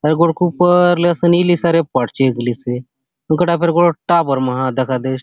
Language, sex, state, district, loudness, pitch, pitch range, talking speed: Halbi, male, Chhattisgarh, Bastar, -15 LUFS, 155 Hz, 130-170 Hz, 205 wpm